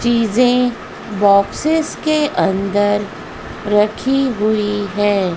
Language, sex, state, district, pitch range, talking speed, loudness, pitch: Hindi, female, Madhya Pradesh, Dhar, 205-250 Hz, 80 wpm, -16 LUFS, 215 Hz